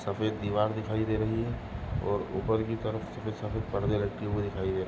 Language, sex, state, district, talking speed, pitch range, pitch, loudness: Hindi, male, Goa, North and South Goa, 235 wpm, 105-110 Hz, 110 Hz, -32 LUFS